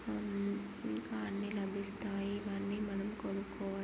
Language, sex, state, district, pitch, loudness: Telugu, male, Andhra Pradesh, Guntur, 200 Hz, -40 LUFS